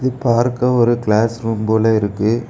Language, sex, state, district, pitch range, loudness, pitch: Tamil, male, Tamil Nadu, Kanyakumari, 110-120 Hz, -16 LUFS, 115 Hz